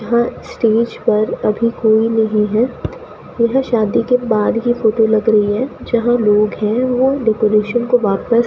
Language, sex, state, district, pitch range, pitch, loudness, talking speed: Hindi, female, Rajasthan, Bikaner, 215-240 Hz, 230 Hz, -15 LUFS, 170 wpm